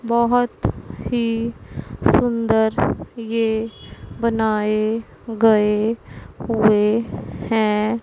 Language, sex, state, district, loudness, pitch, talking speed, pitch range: Hindi, female, Punjab, Pathankot, -20 LUFS, 225 Hz, 60 wpm, 215-230 Hz